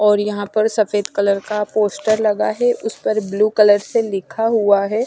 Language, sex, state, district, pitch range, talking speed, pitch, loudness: Hindi, female, Chandigarh, Chandigarh, 205-220 Hz, 200 wpm, 210 Hz, -17 LUFS